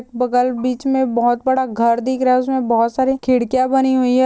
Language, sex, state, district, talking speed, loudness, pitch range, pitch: Hindi, female, Uttar Pradesh, Hamirpur, 240 wpm, -17 LUFS, 240-260 Hz, 255 Hz